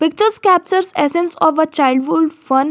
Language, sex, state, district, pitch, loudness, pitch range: English, female, Jharkhand, Garhwa, 320 Hz, -15 LUFS, 295-365 Hz